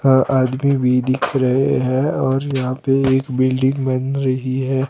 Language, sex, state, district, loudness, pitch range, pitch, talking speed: Hindi, male, Himachal Pradesh, Shimla, -17 LUFS, 130-135 Hz, 130 Hz, 170 wpm